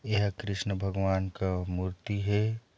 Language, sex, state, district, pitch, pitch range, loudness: Chhattisgarhi, male, Chhattisgarh, Sarguja, 95 Hz, 95-105 Hz, -31 LUFS